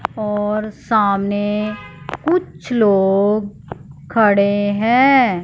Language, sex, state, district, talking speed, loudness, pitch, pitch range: Hindi, female, Punjab, Fazilka, 65 wpm, -17 LUFS, 205 Hz, 200-215 Hz